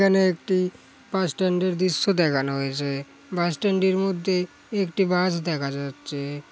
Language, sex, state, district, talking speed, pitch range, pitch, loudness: Bengali, male, West Bengal, Paschim Medinipur, 130 wpm, 145-190 Hz, 180 Hz, -24 LUFS